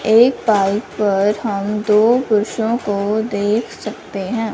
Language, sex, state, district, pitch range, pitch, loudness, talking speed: Hindi, female, Punjab, Fazilka, 205-225 Hz, 210 Hz, -17 LUFS, 130 wpm